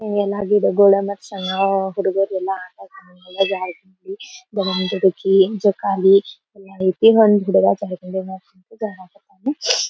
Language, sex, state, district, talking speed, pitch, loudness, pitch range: Kannada, female, Karnataka, Belgaum, 85 wpm, 195 Hz, -18 LUFS, 190-205 Hz